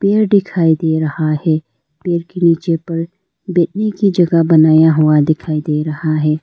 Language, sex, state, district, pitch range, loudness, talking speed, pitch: Hindi, female, Arunachal Pradesh, Lower Dibang Valley, 155-175 Hz, -14 LUFS, 170 wpm, 160 Hz